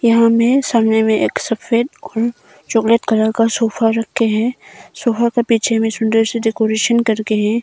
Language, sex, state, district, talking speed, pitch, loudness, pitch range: Hindi, female, Arunachal Pradesh, Longding, 175 wpm, 230 Hz, -16 LUFS, 220-235 Hz